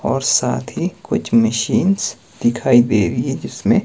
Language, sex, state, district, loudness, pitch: Hindi, male, Himachal Pradesh, Shimla, -17 LUFS, 120 Hz